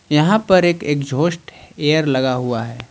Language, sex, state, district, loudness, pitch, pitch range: Hindi, male, Jharkhand, Ranchi, -17 LUFS, 150 Hz, 130-170 Hz